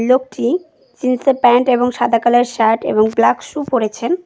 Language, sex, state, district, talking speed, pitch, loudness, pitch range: Bengali, female, West Bengal, Cooch Behar, 185 wpm, 245 Hz, -15 LUFS, 230-270 Hz